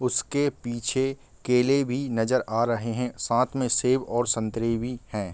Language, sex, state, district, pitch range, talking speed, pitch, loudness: Hindi, male, Bihar, Gopalganj, 115-130 Hz, 170 wpm, 125 Hz, -25 LUFS